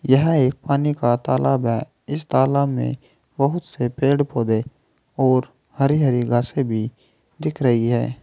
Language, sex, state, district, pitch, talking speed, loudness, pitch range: Hindi, male, Uttar Pradesh, Saharanpur, 130 Hz, 155 wpm, -20 LUFS, 120-145 Hz